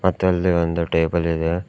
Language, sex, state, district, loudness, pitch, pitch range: Kannada, male, Karnataka, Bidar, -20 LUFS, 85 Hz, 85-90 Hz